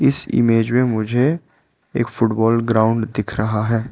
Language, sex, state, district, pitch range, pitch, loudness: Hindi, male, Arunachal Pradesh, Lower Dibang Valley, 110-125 Hz, 115 Hz, -18 LUFS